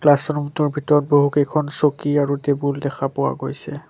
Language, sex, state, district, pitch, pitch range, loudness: Assamese, male, Assam, Sonitpur, 145 Hz, 140-150 Hz, -20 LUFS